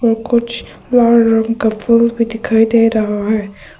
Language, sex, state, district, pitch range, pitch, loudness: Hindi, female, Arunachal Pradesh, Papum Pare, 220-235 Hz, 225 Hz, -14 LUFS